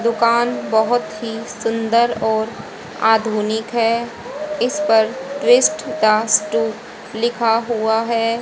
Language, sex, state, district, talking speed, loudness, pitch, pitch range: Hindi, female, Haryana, Rohtak, 105 wpm, -18 LUFS, 225 Hz, 220-235 Hz